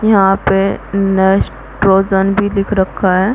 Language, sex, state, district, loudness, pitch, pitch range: Hindi, female, Chhattisgarh, Bastar, -13 LUFS, 195 Hz, 190-200 Hz